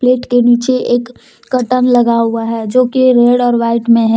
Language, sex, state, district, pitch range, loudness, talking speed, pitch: Hindi, female, Jharkhand, Deoghar, 235-250 Hz, -12 LUFS, 215 wpm, 245 Hz